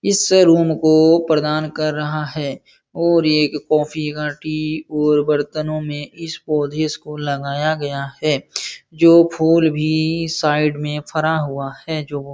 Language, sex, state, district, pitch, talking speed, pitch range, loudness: Hindi, male, Uttar Pradesh, Jalaun, 155 Hz, 140 wpm, 150-160 Hz, -18 LUFS